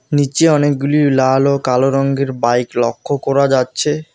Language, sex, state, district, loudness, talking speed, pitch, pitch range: Bengali, male, West Bengal, Alipurduar, -15 LUFS, 145 wpm, 140 Hz, 130-145 Hz